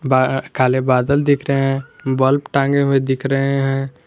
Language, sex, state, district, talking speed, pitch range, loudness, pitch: Hindi, male, Jharkhand, Garhwa, 175 wpm, 130-140 Hz, -17 LUFS, 135 Hz